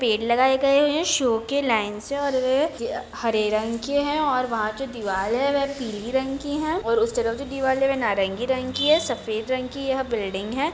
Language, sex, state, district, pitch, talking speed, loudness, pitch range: Hindi, female, Jharkhand, Jamtara, 260 Hz, 210 wpm, -23 LUFS, 230-280 Hz